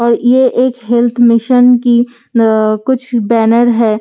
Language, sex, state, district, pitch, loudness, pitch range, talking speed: Hindi, female, Delhi, New Delhi, 235 Hz, -11 LUFS, 230-245 Hz, 195 wpm